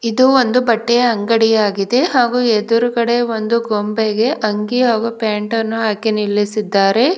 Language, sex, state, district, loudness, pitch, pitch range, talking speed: Kannada, female, Karnataka, Bidar, -15 LUFS, 225 Hz, 215-240 Hz, 115 wpm